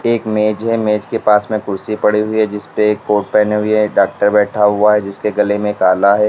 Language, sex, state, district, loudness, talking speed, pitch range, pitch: Hindi, male, Uttar Pradesh, Lalitpur, -14 LUFS, 240 wpm, 105-110 Hz, 105 Hz